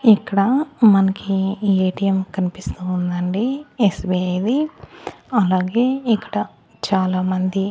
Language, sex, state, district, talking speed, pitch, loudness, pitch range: Telugu, male, Andhra Pradesh, Annamaya, 80 wpm, 195 Hz, -19 LUFS, 185-220 Hz